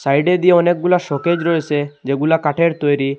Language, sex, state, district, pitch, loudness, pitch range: Bengali, male, Assam, Hailakandi, 160 Hz, -16 LUFS, 145-170 Hz